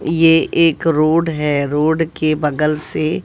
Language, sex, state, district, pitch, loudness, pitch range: Hindi, female, Bihar, West Champaran, 155 Hz, -16 LUFS, 150-165 Hz